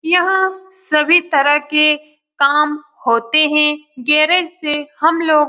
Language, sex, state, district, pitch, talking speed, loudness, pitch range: Hindi, female, Bihar, Lakhisarai, 300 Hz, 130 wpm, -14 LUFS, 295-330 Hz